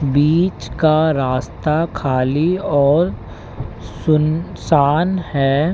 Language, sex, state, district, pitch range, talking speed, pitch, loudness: Hindi, male, Uttar Pradesh, Lalitpur, 130-160 Hz, 75 wpm, 145 Hz, -17 LUFS